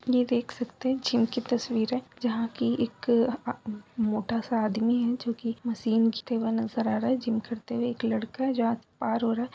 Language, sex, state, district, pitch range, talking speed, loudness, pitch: Hindi, female, Bihar, Begusarai, 225-245 Hz, 230 wpm, -28 LUFS, 235 Hz